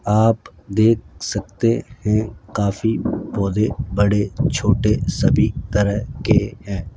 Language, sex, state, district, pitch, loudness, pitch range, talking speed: Hindi, male, Rajasthan, Jaipur, 105 Hz, -20 LUFS, 100-110 Hz, 105 wpm